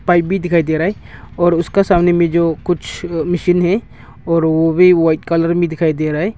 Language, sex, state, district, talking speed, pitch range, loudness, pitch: Hindi, male, Arunachal Pradesh, Longding, 225 wpm, 160-175 Hz, -15 LUFS, 170 Hz